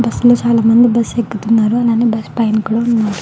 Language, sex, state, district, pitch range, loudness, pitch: Telugu, female, Andhra Pradesh, Chittoor, 220-235 Hz, -13 LUFS, 230 Hz